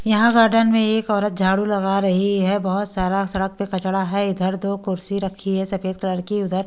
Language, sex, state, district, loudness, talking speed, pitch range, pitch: Hindi, female, Haryana, Charkhi Dadri, -20 LUFS, 215 wpm, 190-205 Hz, 195 Hz